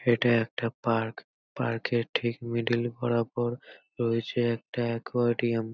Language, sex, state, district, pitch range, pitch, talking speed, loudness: Bengali, male, West Bengal, North 24 Parganas, 115-120 Hz, 120 Hz, 135 wpm, -29 LUFS